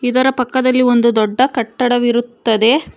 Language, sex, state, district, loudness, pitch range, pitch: Kannada, female, Karnataka, Bangalore, -14 LUFS, 235-255 Hz, 245 Hz